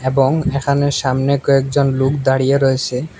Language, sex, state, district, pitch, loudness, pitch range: Bengali, male, Assam, Hailakandi, 135 Hz, -16 LUFS, 135-140 Hz